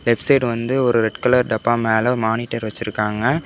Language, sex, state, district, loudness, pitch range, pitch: Tamil, male, Tamil Nadu, Namakkal, -18 LUFS, 110-125 Hz, 115 Hz